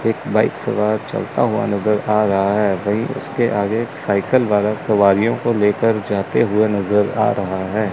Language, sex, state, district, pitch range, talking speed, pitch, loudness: Hindi, male, Chandigarh, Chandigarh, 100-115 Hz, 180 wpm, 105 Hz, -18 LUFS